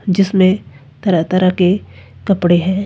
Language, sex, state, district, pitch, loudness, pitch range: Hindi, female, Himachal Pradesh, Shimla, 185 Hz, -15 LUFS, 175-195 Hz